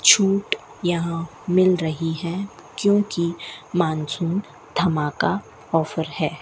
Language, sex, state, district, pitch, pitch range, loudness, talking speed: Hindi, female, Rajasthan, Bikaner, 170 Hz, 160-185 Hz, -22 LUFS, 95 wpm